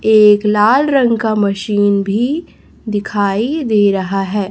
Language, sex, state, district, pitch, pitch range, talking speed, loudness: Hindi, female, Chhattisgarh, Raipur, 210 Hz, 200-230 Hz, 135 wpm, -14 LUFS